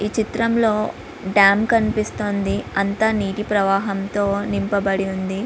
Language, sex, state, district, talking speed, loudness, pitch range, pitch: Telugu, female, Andhra Pradesh, Visakhapatnam, 100 wpm, -20 LUFS, 195-215 Hz, 205 Hz